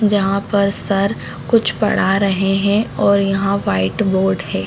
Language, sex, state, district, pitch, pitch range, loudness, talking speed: Hindi, female, Chhattisgarh, Bastar, 195 Hz, 190-200 Hz, -16 LUFS, 165 wpm